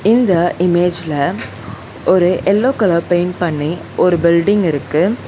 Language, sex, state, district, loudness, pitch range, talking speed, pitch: Tamil, female, Tamil Nadu, Chennai, -15 LUFS, 160-185 Hz, 115 wpm, 175 Hz